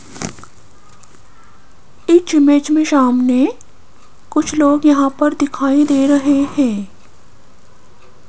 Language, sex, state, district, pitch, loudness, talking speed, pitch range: Hindi, female, Rajasthan, Jaipur, 285 Hz, -14 LUFS, 85 wpm, 275-300 Hz